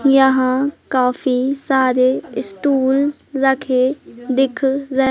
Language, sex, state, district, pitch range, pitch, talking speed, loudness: Hindi, female, Madhya Pradesh, Katni, 255-275 Hz, 265 Hz, 80 wpm, -17 LUFS